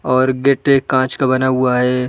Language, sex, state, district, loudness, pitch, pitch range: Hindi, male, Uttar Pradesh, Budaun, -15 LUFS, 130 Hz, 125-130 Hz